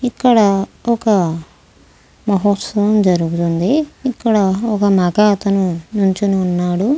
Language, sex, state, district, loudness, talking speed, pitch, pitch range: Telugu, female, Andhra Pradesh, Krishna, -15 LUFS, 85 wpm, 200 Hz, 185-220 Hz